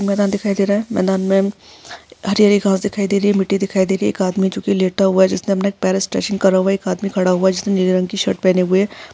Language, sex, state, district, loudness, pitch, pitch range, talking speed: Hindi, female, Maharashtra, Aurangabad, -17 LUFS, 195 Hz, 190-200 Hz, 270 wpm